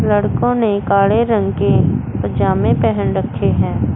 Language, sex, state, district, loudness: Hindi, female, Chandigarh, Chandigarh, -15 LUFS